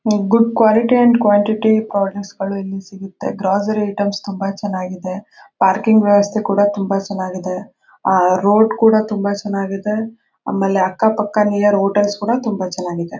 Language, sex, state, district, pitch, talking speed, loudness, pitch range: Kannada, female, Karnataka, Mysore, 205 Hz, 130 wpm, -16 LUFS, 195-215 Hz